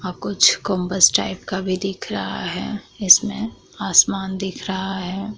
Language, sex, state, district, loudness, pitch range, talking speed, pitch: Hindi, female, Bihar, Vaishali, -19 LUFS, 185-200 Hz, 165 wpm, 190 Hz